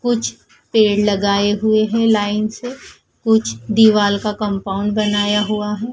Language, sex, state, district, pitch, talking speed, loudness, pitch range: Hindi, female, Punjab, Fazilka, 210 Hz, 140 wpm, -17 LUFS, 205-220 Hz